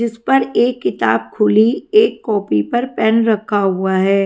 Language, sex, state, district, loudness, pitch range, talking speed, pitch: Hindi, female, Haryana, Rohtak, -15 LUFS, 195-240 Hz, 170 wpm, 220 Hz